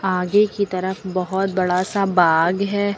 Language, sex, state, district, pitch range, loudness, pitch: Hindi, female, Uttar Pradesh, Lucknow, 185-200 Hz, -19 LUFS, 190 Hz